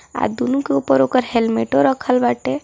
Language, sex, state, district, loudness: Hindi, female, Bihar, East Champaran, -17 LUFS